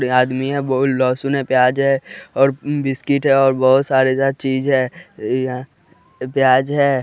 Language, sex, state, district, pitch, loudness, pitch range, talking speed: Hindi, male, Bihar, West Champaran, 135 Hz, -17 LUFS, 130-140 Hz, 170 wpm